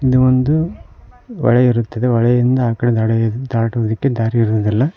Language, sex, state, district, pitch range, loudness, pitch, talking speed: Kannada, male, Karnataka, Koppal, 115-130 Hz, -16 LUFS, 120 Hz, 135 wpm